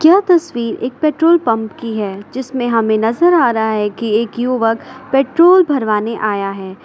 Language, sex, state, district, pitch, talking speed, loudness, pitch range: Hindi, female, Uttar Pradesh, Lucknow, 235 Hz, 175 wpm, -15 LUFS, 220-285 Hz